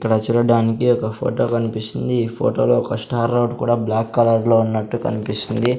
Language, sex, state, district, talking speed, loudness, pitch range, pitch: Telugu, male, Andhra Pradesh, Sri Satya Sai, 165 wpm, -19 LUFS, 110-120 Hz, 115 Hz